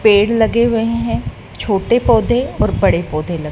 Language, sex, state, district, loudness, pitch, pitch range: Hindi, female, Madhya Pradesh, Dhar, -15 LUFS, 225 Hz, 195-235 Hz